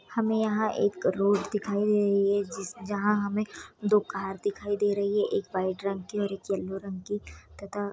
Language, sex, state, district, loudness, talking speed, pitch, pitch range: Hindi, female, Bihar, Sitamarhi, -28 LUFS, 205 wpm, 205 Hz, 195-210 Hz